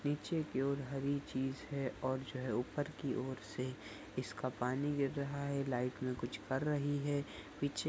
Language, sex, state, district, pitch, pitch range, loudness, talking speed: Hindi, male, Bihar, Saharsa, 135 Hz, 130-145 Hz, -39 LUFS, 190 wpm